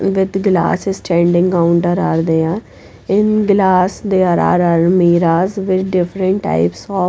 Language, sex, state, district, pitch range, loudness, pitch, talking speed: English, female, Punjab, Pathankot, 170-195 Hz, -14 LUFS, 185 Hz, 135 wpm